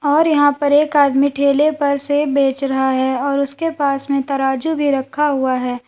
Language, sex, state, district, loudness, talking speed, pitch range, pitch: Hindi, female, Uttar Pradesh, Lalitpur, -16 LUFS, 205 wpm, 270-290 Hz, 280 Hz